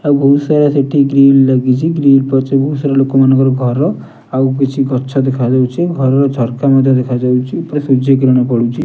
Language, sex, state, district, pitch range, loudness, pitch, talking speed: Odia, male, Odisha, Nuapada, 130-140 Hz, -12 LUFS, 135 Hz, 150 wpm